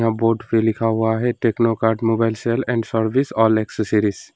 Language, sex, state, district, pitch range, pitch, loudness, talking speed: Hindi, male, West Bengal, Alipurduar, 110-115 Hz, 115 Hz, -19 LUFS, 190 wpm